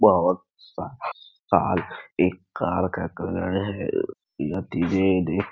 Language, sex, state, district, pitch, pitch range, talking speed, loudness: Hindi, male, Bihar, Muzaffarpur, 95 Hz, 90-95 Hz, 100 wpm, -25 LUFS